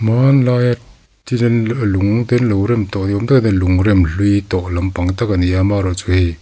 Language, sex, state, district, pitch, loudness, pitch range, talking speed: Mizo, male, Mizoram, Aizawl, 100 Hz, -15 LUFS, 95-120 Hz, 195 wpm